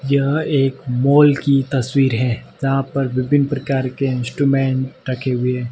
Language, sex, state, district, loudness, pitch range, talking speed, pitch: Hindi, male, Rajasthan, Barmer, -18 LUFS, 130-140 Hz, 145 wpm, 135 Hz